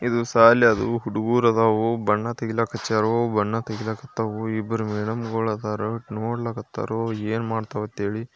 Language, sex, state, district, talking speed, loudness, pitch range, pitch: Kannada, male, Karnataka, Bijapur, 55 wpm, -23 LUFS, 110-115 Hz, 115 Hz